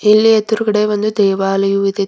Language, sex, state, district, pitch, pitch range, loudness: Kannada, female, Karnataka, Bidar, 210 Hz, 195-215 Hz, -14 LUFS